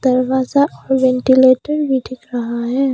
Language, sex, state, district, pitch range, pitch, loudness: Hindi, female, Arunachal Pradesh, Papum Pare, 255-265 Hz, 260 Hz, -15 LUFS